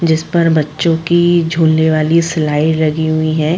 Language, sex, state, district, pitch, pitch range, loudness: Hindi, female, Uttar Pradesh, Jalaun, 160 Hz, 155-165 Hz, -13 LUFS